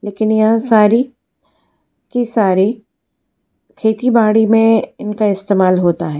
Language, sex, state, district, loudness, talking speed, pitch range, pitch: Hindi, female, Gujarat, Valsad, -14 LUFS, 105 wpm, 205-225 Hz, 220 Hz